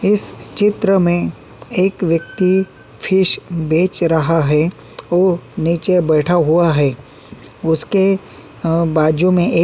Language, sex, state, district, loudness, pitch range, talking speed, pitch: Hindi, male, Uttarakhand, Tehri Garhwal, -15 LUFS, 160-185 Hz, 125 wpm, 170 Hz